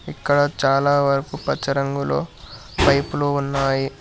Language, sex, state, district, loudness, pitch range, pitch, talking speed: Telugu, male, Telangana, Hyderabad, -20 LUFS, 135-145 Hz, 140 Hz, 105 wpm